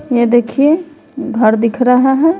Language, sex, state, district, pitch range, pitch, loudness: Hindi, female, Bihar, West Champaran, 240-300 Hz, 265 Hz, -12 LUFS